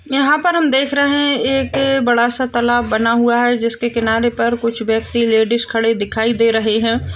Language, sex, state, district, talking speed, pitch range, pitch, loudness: Hindi, female, Chhattisgarh, Kabirdham, 200 wpm, 225-265 Hz, 235 Hz, -15 LUFS